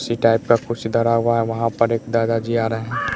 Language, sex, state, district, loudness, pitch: Hindi, male, Bihar, West Champaran, -19 LUFS, 115 Hz